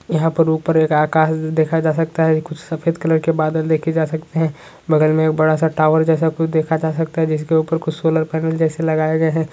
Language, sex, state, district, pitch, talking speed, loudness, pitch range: Hindi, male, West Bengal, Dakshin Dinajpur, 160 Hz, 250 wpm, -17 LUFS, 155-160 Hz